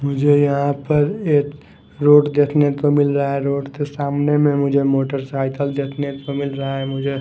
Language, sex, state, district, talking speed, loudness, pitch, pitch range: Hindi, male, Maharashtra, Mumbai Suburban, 185 wpm, -18 LUFS, 140 Hz, 140-145 Hz